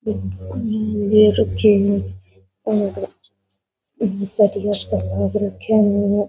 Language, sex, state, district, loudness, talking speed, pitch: Rajasthani, female, Rajasthan, Nagaur, -19 LUFS, 40 wpm, 195 Hz